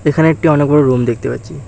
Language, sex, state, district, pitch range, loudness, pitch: Bengali, male, West Bengal, Alipurduar, 130-155 Hz, -13 LUFS, 150 Hz